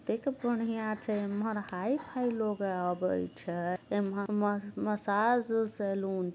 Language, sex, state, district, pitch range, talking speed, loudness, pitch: Hindi, female, Bihar, Muzaffarpur, 195-225 Hz, 160 wpm, -33 LUFS, 205 Hz